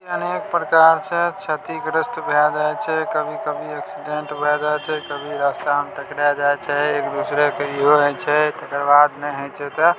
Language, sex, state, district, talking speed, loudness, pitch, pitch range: Maithili, male, Bihar, Samastipur, 180 wpm, -20 LUFS, 150 Hz, 145-155 Hz